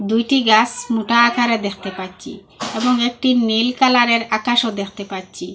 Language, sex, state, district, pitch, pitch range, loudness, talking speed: Bengali, female, Assam, Hailakandi, 230 Hz, 215-240 Hz, -16 LUFS, 150 wpm